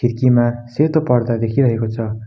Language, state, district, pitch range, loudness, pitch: Nepali, West Bengal, Darjeeling, 115-125 Hz, -17 LUFS, 120 Hz